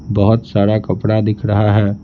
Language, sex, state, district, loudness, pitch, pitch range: Hindi, male, Bihar, Patna, -15 LUFS, 105 Hz, 100-110 Hz